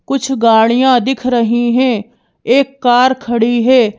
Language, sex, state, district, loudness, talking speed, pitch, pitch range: Hindi, female, Madhya Pradesh, Bhopal, -12 LUFS, 135 wpm, 245 Hz, 235-260 Hz